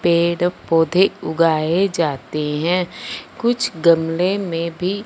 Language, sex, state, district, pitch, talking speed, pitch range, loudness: Hindi, male, Punjab, Fazilka, 170 Hz, 105 wpm, 165-180 Hz, -18 LUFS